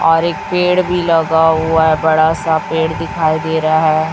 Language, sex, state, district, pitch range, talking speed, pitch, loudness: Hindi, male, Chhattisgarh, Raipur, 160-165 Hz, 205 wpm, 160 Hz, -14 LUFS